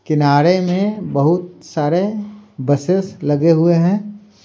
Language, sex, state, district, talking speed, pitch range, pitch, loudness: Hindi, male, Bihar, Patna, 110 wpm, 150-195 Hz, 180 Hz, -16 LUFS